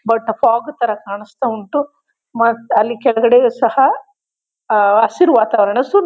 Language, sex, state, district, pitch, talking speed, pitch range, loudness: Kannada, female, Karnataka, Chamarajanagar, 235 Hz, 120 wpm, 220-285 Hz, -15 LUFS